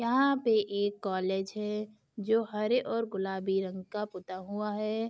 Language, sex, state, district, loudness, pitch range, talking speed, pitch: Hindi, female, Bihar, Saharsa, -32 LUFS, 195-220 Hz, 165 wpm, 210 Hz